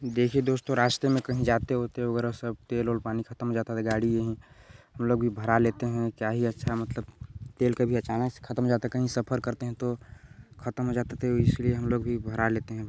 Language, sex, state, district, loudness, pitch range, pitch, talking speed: Hindi, male, Chhattisgarh, Balrampur, -28 LUFS, 115-125 Hz, 120 Hz, 245 wpm